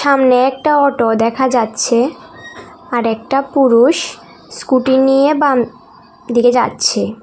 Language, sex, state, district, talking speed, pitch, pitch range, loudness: Bengali, female, Tripura, South Tripura, 110 wpm, 260 Hz, 240-280 Hz, -13 LUFS